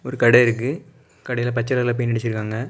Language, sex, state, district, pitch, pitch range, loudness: Tamil, male, Tamil Nadu, Kanyakumari, 120 Hz, 115-125 Hz, -20 LUFS